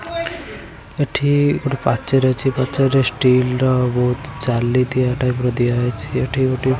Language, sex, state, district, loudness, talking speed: Odia, male, Odisha, Khordha, -18 LUFS, 130 wpm